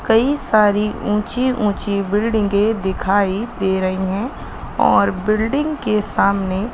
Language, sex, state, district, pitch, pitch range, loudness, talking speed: Hindi, female, Madhya Pradesh, Katni, 210 Hz, 200-225 Hz, -18 LUFS, 125 wpm